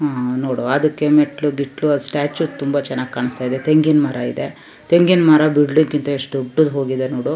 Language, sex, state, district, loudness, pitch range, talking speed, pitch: Kannada, female, Karnataka, Shimoga, -17 LUFS, 130-150 Hz, 180 wpm, 145 Hz